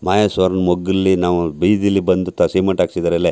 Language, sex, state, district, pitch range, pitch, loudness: Kannada, male, Karnataka, Chamarajanagar, 90-95 Hz, 95 Hz, -16 LUFS